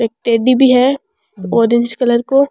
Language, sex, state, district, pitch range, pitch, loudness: Rajasthani, female, Rajasthan, Churu, 230-260 Hz, 240 Hz, -13 LUFS